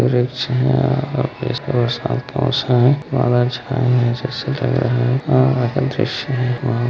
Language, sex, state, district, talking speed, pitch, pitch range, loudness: Hindi, male, Chhattisgarh, Bilaspur, 115 wpm, 125 Hz, 120-135 Hz, -18 LUFS